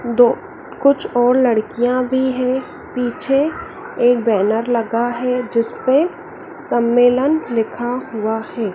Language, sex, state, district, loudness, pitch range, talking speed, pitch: Hindi, female, Madhya Pradesh, Dhar, -17 LUFS, 235-260 Hz, 110 wpm, 245 Hz